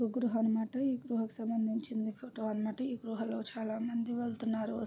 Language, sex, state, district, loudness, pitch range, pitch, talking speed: Telugu, female, Andhra Pradesh, Chittoor, -36 LUFS, 220-240 Hz, 225 Hz, 160 wpm